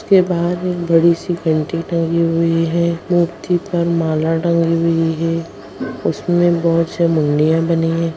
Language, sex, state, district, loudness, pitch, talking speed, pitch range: Hindi, female, Bihar, Madhepura, -16 LUFS, 165 Hz, 145 wpm, 165-170 Hz